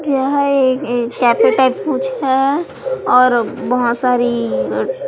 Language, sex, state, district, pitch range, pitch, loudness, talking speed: Hindi, female, Chhattisgarh, Raipur, 245-280 Hz, 260 Hz, -15 LUFS, 95 wpm